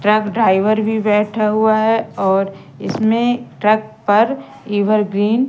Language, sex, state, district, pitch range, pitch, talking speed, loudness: Hindi, female, Madhya Pradesh, Katni, 205-220 Hz, 215 Hz, 140 wpm, -16 LUFS